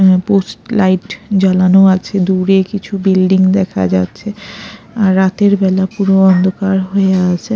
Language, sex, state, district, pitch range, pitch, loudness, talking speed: Bengali, female, Odisha, Khordha, 185-200 Hz, 190 Hz, -12 LUFS, 135 wpm